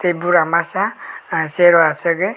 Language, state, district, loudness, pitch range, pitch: Kokborok, Tripura, West Tripura, -16 LUFS, 165-180 Hz, 175 Hz